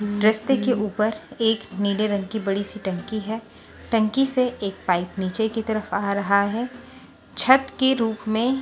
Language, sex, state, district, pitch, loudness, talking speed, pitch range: Hindi, female, Delhi, New Delhi, 220 Hz, -23 LUFS, 175 wpm, 200-235 Hz